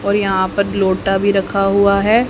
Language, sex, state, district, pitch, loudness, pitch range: Hindi, female, Haryana, Jhajjar, 200 Hz, -15 LUFS, 195-200 Hz